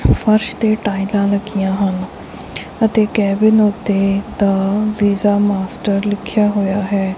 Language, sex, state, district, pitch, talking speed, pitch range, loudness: Punjabi, female, Punjab, Kapurthala, 205 Hz, 115 wpm, 195-215 Hz, -16 LUFS